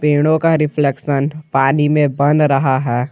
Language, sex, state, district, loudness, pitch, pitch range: Hindi, male, Jharkhand, Garhwa, -15 LUFS, 145 Hz, 135-150 Hz